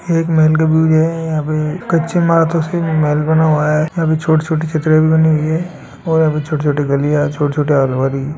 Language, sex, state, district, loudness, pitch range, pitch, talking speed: Hindi, male, Rajasthan, Nagaur, -14 LUFS, 150-160 Hz, 155 Hz, 220 wpm